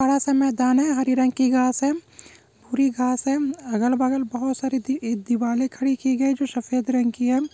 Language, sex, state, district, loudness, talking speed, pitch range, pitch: Hindi, male, Jharkhand, Jamtara, -22 LUFS, 200 wpm, 250-270 Hz, 260 Hz